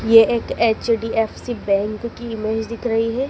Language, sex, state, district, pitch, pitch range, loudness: Hindi, female, Madhya Pradesh, Dhar, 225 Hz, 220-235 Hz, -20 LUFS